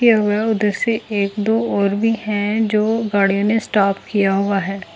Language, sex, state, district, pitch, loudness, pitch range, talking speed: Hindi, female, Delhi, New Delhi, 210 Hz, -18 LUFS, 200-220 Hz, 195 wpm